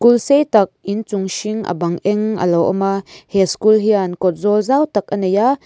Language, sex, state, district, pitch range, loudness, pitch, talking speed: Mizo, female, Mizoram, Aizawl, 190-215 Hz, -16 LUFS, 205 Hz, 210 wpm